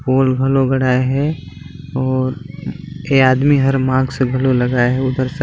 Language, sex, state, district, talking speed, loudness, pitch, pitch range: Chhattisgarhi, male, Chhattisgarh, Balrampur, 155 wpm, -16 LUFS, 130 Hz, 130-135 Hz